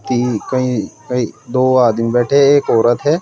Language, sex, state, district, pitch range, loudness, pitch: Hindi, male, Uttar Pradesh, Saharanpur, 120-130 Hz, -15 LUFS, 125 Hz